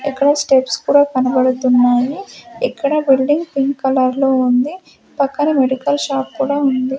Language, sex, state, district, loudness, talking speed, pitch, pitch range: Telugu, female, Andhra Pradesh, Sri Satya Sai, -15 LUFS, 130 wpm, 275 Hz, 260-285 Hz